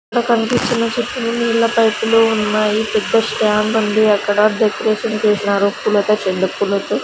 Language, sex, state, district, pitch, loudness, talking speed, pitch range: Telugu, female, Andhra Pradesh, Sri Satya Sai, 215 Hz, -16 LUFS, 145 wpm, 210-230 Hz